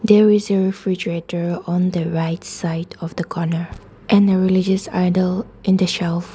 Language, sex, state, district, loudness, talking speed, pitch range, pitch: English, female, Nagaland, Dimapur, -19 LUFS, 170 wpm, 170-190 Hz, 180 Hz